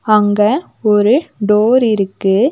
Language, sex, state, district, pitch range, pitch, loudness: Tamil, female, Tamil Nadu, Nilgiris, 205-230 Hz, 210 Hz, -13 LUFS